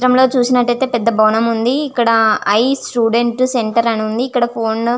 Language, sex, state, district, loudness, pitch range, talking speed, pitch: Telugu, female, Andhra Pradesh, Visakhapatnam, -14 LUFS, 225-250 Hz, 195 wpm, 235 Hz